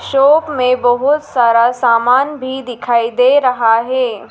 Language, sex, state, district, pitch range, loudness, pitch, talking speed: Hindi, female, Madhya Pradesh, Dhar, 235-265 Hz, -13 LUFS, 250 Hz, 140 wpm